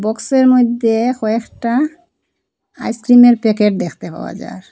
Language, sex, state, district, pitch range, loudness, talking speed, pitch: Bengali, female, Assam, Hailakandi, 220-250 Hz, -14 LUFS, 100 wpm, 235 Hz